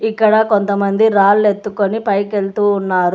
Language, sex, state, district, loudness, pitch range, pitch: Telugu, female, Telangana, Hyderabad, -14 LUFS, 200-215 Hz, 205 Hz